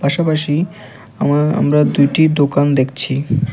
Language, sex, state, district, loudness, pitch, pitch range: Bengali, male, Tripura, West Tripura, -15 LUFS, 145 Hz, 135-150 Hz